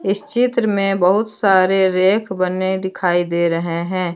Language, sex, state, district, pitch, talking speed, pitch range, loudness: Hindi, female, Jharkhand, Deoghar, 190 Hz, 160 wpm, 180-200 Hz, -17 LUFS